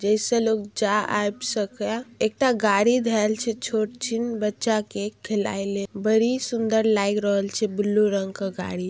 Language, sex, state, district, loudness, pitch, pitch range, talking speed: Maithili, female, Bihar, Darbhanga, -24 LUFS, 215 Hz, 205-225 Hz, 175 wpm